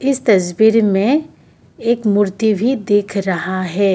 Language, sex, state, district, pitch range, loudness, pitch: Hindi, female, Assam, Kamrup Metropolitan, 195-230 Hz, -16 LUFS, 205 Hz